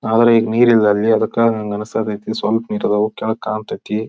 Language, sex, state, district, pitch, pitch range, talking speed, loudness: Kannada, male, Karnataka, Dharwad, 110 Hz, 105-115 Hz, 145 wpm, -17 LUFS